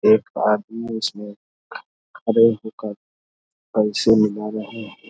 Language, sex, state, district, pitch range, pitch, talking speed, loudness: Hindi, male, Bihar, Darbhanga, 105-115 Hz, 110 Hz, 105 wpm, -20 LUFS